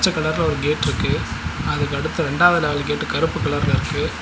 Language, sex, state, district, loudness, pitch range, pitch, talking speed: Tamil, male, Tamil Nadu, Nilgiris, -20 LUFS, 140-155 Hz, 145 Hz, 140 wpm